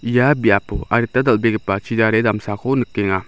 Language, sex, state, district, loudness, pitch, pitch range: Garo, male, Meghalaya, South Garo Hills, -17 LUFS, 110 Hz, 100-120 Hz